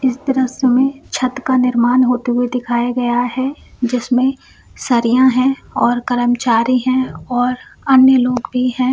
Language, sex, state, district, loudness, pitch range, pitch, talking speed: Hindi, female, Chhattisgarh, Balrampur, -15 LUFS, 245-260 Hz, 250 Hz, 150 wpm